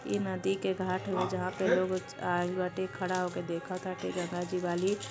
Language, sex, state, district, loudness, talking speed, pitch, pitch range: Bhojpuri, female, Uttar Pradesh, Gorakhpur, -33 LUFS, 200 wpm, 185 Hz, 180-190 Hz